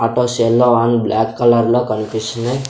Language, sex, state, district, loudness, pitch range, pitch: Telugu, male, Andhra Pradesh, Sri Satya Sai, -15 LUFS, 110-120 Hz, 115 Hz